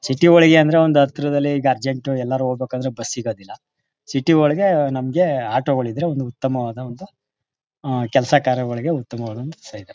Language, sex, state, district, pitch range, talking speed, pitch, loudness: Kannada, male, Karnataka, Mysore, 125-150 Hz, 140 wpm, 135 Hz, -18 LUFS